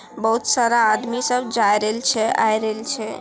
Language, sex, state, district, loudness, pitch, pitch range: Maithili, female, Bihar, Bhagalpur, -19 LUFS, 225 Hz, 220-240 Hz